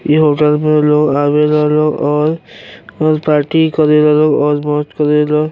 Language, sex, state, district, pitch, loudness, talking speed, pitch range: Bhojpuri, male, Uttar Pradesh, Gorakhpur, 150 Hz, -12 LUFS, 150 wpm, 150-155 Hz